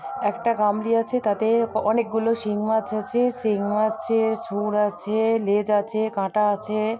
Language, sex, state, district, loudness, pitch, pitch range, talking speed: Bengali, female, West Bengal, Jhargram, -23 LUFS, 215 Hz, 210-225 Hz, 135 wpm